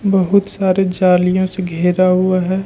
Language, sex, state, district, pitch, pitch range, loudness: Hindi, male, Jharkhand, Ranchi, 185 Hz, 185-190 Hz, -15 LUFS